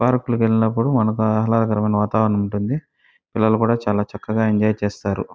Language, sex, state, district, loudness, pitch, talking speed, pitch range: Telugu, male, Andhra Pradesh, Chittoor, -19 LUFS, 110 Hz, 125 wpm, 105-115 Hz